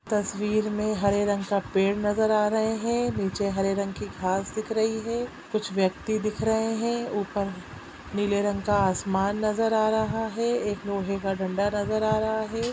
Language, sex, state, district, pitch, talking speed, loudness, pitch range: Hindi, female, Chhattisgarh, Sukma, 210 Hz, 185 wpm, -26 LUFS, 200-220 Hz